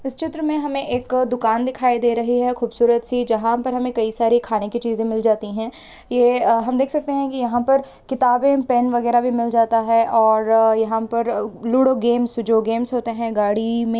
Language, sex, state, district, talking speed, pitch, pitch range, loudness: Hindi, female, Maharashtra, Solapur, 210 wpm, 240 Hz, 230-250 Hz, -19 LUFS